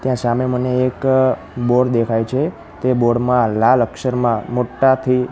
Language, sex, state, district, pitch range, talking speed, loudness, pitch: Gujarati, male, Gujarat, Gandhinagar, 120-130 Hz, 145 wpm, -17 LUFS, 125 Hz